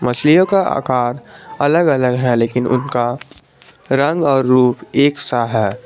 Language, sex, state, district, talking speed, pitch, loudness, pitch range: Hindi, male, Jharkhand, Garhwa, 145 wpm, 125 Hz, -15 LUFS, 120-145 Hz